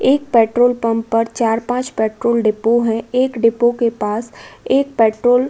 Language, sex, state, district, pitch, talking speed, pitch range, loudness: Hindi, female, Uttar Pradesh, Budaun, 235 Hz, 165 wpm, 225-245 Hz, -16 LUFS